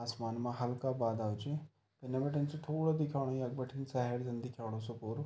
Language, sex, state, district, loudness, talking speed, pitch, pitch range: Garhwali, male, Uttarakhand, Tehri Garhwal, -38 LUFS, 195 wpm, 125 Hz, 120-140 Hz